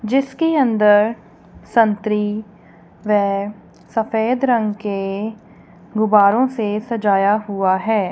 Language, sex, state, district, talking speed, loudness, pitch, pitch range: Hindi, female, Punjab, Kapurthala, 90 wpm, -18 LUFS, 215 Hz, 205-225 Hz